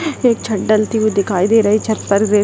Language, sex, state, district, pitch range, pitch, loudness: Hindi, female, Bihar, Jahanabad, 205-225 Hz, 215 Hz, -15 LUFS